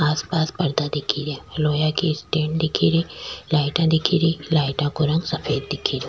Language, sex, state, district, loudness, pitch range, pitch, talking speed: Rajasthani, female, Rajasthan, Churu, -22 LUFS, 145-160 Hz, 155 Hz, 185 wpm